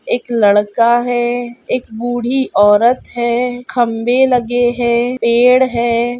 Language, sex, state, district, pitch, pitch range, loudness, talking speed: Hindi, female, Uttar Pradesh, Hamirpur, 240 Hz, 235-245 Hz, -14 LUFS, 115 wpm